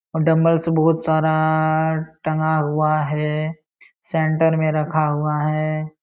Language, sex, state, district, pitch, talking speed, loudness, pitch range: Hindi, male, Uttar Pradesh, Jalaun, 155 Hz, 120 wpm, -19 LUFS, 155-160 Hz